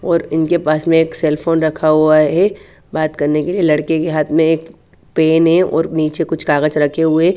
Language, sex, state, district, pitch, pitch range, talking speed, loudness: Hindi, female, Haryana, Charkhi Dadri, 160 Hz, 155-165 Hz, 220 wpm, -15 LUFS